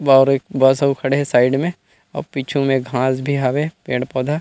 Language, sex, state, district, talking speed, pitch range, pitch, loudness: Chhattisgarhi, male, Chhattisgarh, Rajnandgaon, 230 wpm, 130-140 Hz, 135 Hz, -18 LUFS